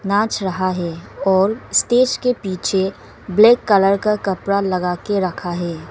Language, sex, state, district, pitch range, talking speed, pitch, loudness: Hindi, female, Arunachal Pradesh, Longding, 185-210 Hz, 150 wpm, 195 Hz, -18 LUFS